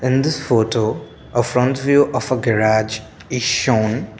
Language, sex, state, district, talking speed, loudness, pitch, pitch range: English, male, Assam, Kamrup Metropolitan, 155 wpm, -18 LUFS, 125 Hz, 110-130 Hz